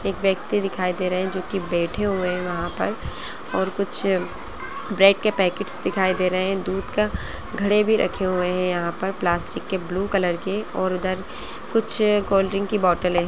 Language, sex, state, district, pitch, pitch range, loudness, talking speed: Hindi, female, Chhattisgarh, Bastar, 190 Hz, 180-200 Hz, -22 LUFS, 190 wpm